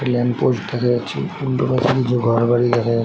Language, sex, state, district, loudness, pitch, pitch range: Bengali, male, West Bengal, Jhargram, -18 LUFS, 120 Hz, 120-130 Hz